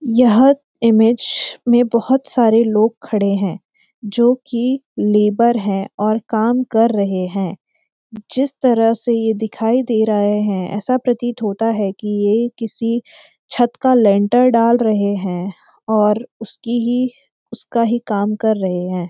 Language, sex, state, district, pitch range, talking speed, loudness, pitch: Hindi, female, Uttarakhand, Uttarkashi, 210-240 Hz, 150 wpm, -16 LUFS, 225 Hz